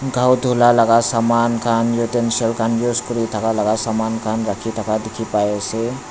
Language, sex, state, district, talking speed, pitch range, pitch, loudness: Nagamese, male, Nagaland, Dimapur, 175 wpm, 110-120 Hz, 115 Hz, -18 LUFS